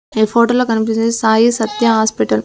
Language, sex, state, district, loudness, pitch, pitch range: Telugu, female, Andhra Pradesh, Sri Satya Sai, -14 LUFS, 225 Hz, 220-235 Hz